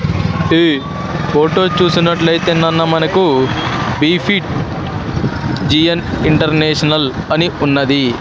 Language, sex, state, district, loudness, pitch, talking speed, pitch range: Telugu, male, Andhra Pradesh, Sri Satya Sai, -13 LUFS, 160 Hz, 65 wpm, 150-170 Hz